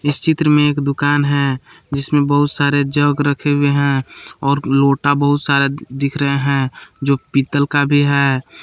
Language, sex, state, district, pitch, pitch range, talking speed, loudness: Hindi, male, Jharkhand, Palamu, 140 Hz, 140-145 Hz, 175 wpm, -15 LUFS